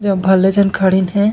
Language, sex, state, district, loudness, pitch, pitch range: Chhattisgarhi, male, Chhattisgarh, Raigarh, -13 LUFS, 190 Hz, 190-200 Hz